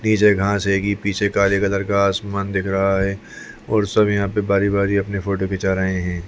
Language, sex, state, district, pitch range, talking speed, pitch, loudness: Hindi, male, Chhattisgarh, Bastar, 95-100 Hz, 200 wpm, 100 Hz, -19 LUFS